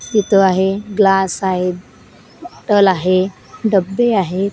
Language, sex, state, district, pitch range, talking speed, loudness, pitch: Marathi, female, Maharashtra, Gondia, 185-205 Hz, 105 wpm, -15 LUFS, 195 Hz